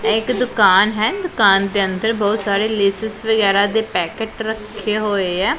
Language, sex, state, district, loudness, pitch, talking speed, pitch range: Punjabi, female, Punjab, Pathankot, -17 LUFS, 215 Hz, 170 wpm, 200-220 Hz